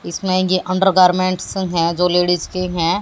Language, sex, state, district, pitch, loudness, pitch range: Hindi, female, Haryana, Jhajjar, 185 Hz, -17 LUFS, 175-185 Hz